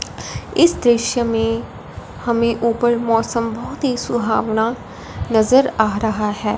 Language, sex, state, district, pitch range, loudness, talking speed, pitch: Hindi, female, Punjab, Fazilka, 225-240 Hz, -18 LUFS, 120 wpm, 230 Hz